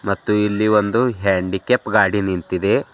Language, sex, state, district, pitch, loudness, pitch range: Kannada, male, Karnataka, Bidar, 105 Hz, -18 LUFS, 95-110 Hz